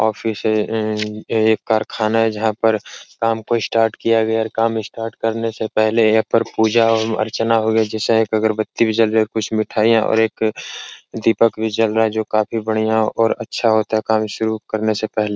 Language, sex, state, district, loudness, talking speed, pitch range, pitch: Hindi, male, Uttar Pradesh, Etah, -18 LUFS, 205 wpm, 110-115 Hz, 110 Hz